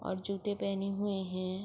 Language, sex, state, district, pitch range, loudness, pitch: Urdu, female, Andhra Pradesh, Anantapur, 190-200 Hz, -35 LUFS, 195 Hz